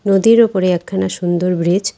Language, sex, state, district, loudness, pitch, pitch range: Bengali, female, West Bengal, Cooch Behar, -15 LUFS, 180 Hz, 175-200 Hz